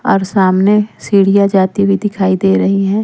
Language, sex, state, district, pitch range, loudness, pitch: Hindi, female, Madhya Pradesh, Umaria, 190-205 Hz, -12 LUFS, 195 Hz